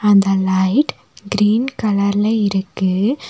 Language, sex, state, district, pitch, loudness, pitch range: Tamil, female, Tamil Nadu, Nilgiris, 205 Hz, -17 LUFS, 195-215 Hz